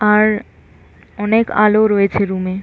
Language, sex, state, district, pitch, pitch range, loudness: Bengali, female, West Bengal, North 24 Parganas, 205 Hz, 185-210 Hz, -15 LUFS